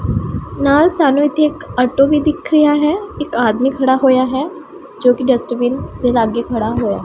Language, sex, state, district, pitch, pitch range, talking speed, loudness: Punjabi, female, Punjab, Pathankot, 270 Hz, 250-300 Hz, 185 wpm, -15 LUFS